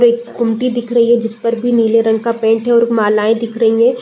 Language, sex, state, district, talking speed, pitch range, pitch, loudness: Hindi, female, Uttar Pradesh, Deoria, 255 wpm, 225-235 Hz, 230 Hz, -14 LUFS